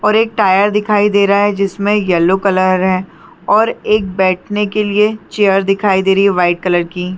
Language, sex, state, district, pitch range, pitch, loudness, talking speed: Hindi, female, Chhattisgarh, Bilaspur, 185-210 Hz, 195 Hz, -13 LUFS, 200 wpm